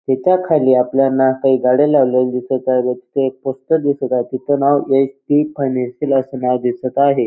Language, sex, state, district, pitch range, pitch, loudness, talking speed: Marathi, male, Maharashtra, Dhule, 125-140 Hz, 130 Hz, -16 LUFS, 175 wpm